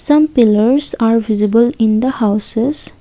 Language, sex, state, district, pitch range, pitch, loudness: English, female, Assam, Kamrup Metropolitan, 220-260 Hz, 230 Hz, -13 LUFS